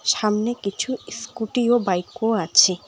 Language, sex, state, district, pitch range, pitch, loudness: Bengali, female, West Bengal, Cooch Behar, 200-240 Hz, 220 Hz, -21 LUFS